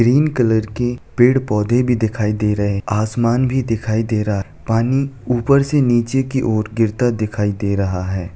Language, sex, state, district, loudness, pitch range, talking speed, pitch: Hindi, male, Chhattisgarh, Bilaspur, -17 LUFS, 105-125 Hz, 180 wpm, 115 Hz